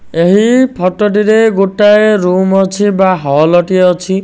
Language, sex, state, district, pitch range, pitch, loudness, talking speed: Odia, male, Odisha, Nuapada, 185-210 Hz, 195 Hz, -10 LUFS, 140 wpm